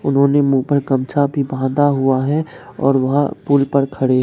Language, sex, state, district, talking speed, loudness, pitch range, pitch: Hindi, male, Bihar, Katihar, 185 wpm, -16 LUFS, 135-145 Hz, 140 Hz